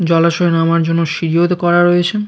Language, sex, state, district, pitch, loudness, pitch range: Bengali, male, West Bengal, Jalpaiguri, 170 Hz, -13 LUFS, 165-175 Hz